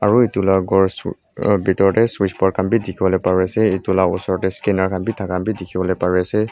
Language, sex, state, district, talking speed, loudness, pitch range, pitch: Nagamese, male, Mizoram, Aizawl, 250 wpm, -18 LUFS, 95-105 Hz, 95 Hz